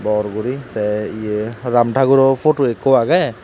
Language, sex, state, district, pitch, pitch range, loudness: Chakma, male, Tripura, Dhalai, 120 Hz, 105-135 Hz, -16 LUFS